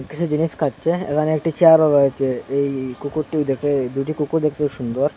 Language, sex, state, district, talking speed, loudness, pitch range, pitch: Bengali, male, Assam, Hailakandi, 160 wpm, -19 LUFS, 135-155 Hz, 145 Hz